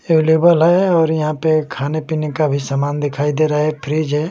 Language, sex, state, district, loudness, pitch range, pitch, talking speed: Hindi, male, Bihar, Kaimur, -16 LUFS, 145-160 Hz, 155 Hz, 210 wpm